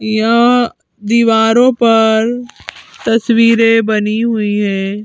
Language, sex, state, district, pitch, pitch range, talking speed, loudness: Hindi, female, Madhya Pradesh, Bhopal, 225 Hz, 215-235 Hz, 85 wpm, -12 LUFS